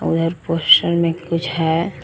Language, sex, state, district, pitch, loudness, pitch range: Hindi, male, Jharkhand, Palamu, 165 Hz, -17 LUFS, 165-170 Hz